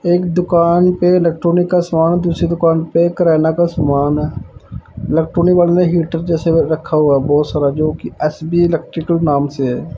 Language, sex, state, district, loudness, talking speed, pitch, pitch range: Hindi, male, Punjab, Pathankot, -14 LUFS, 170 wpm, 165 Hz, 150-175 Hz